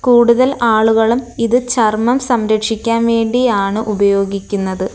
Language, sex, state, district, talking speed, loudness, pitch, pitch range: Malayalam, female, Kerala, Kollam, 85 wpm, -14 LUFS, 225 Hz, 210-240 Hz